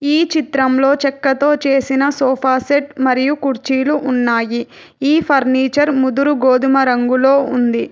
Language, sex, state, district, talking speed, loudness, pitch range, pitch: Telugu, female, Telangana, Hyderabad, 115 wpm, -15 LUFS, 260-285 Hz, 270 Hz